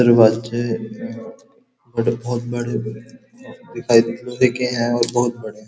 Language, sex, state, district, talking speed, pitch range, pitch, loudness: Hindi, male, Uttar Pradesh, Muzaffarnagar, 95 wpm, 115-120 Hz, 120 Hz, -20 LUFS